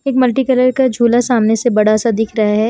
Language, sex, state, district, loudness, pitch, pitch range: Hindi, female, Himachal Pradesh, Shimla, -13 LUFS, 235 Hz, 220-255 Hz